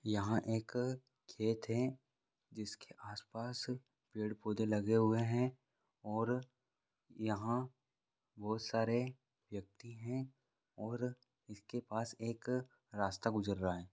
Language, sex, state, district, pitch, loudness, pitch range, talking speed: Hindi, male, Bihar, Vaishali, 115 Hz, -40 LUFS, 110-125 Hz, 110 wpm